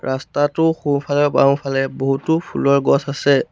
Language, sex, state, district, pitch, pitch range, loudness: Assamese, male, Assam, Sonitpur, 140 Hz, 135-145 Hz, -18 LUFS